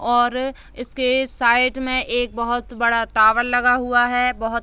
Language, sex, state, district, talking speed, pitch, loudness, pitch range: Hindi, female, Uttar Pradesh, Jalaun, 170 wpm, 245 Hz, -19 LUFS, 235-255 Hz